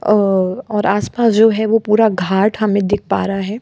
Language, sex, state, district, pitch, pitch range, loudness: Hindi, female, Bihar, Kishanganj, 210 Hz, 195-220 Hz, -15 LUFS